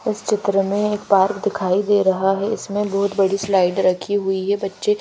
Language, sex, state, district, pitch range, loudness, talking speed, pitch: Hindi, female, Madhya Pradesh, Bhopal, 195-205 Hz, -19 LUFS, 205 wpm, 200 Hz